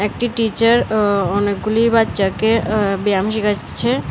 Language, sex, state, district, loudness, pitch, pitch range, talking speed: Bengali, female, Tripura, West Tripura, -17 LUFS, 215 Hz, 200-225 Hz, 115 wpm